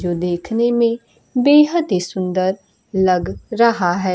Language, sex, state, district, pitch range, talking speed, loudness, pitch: Hindi, female, Bihar, Kaimur, 180-235 Hz, 115 wpm, -17 LUFS, 190 Hz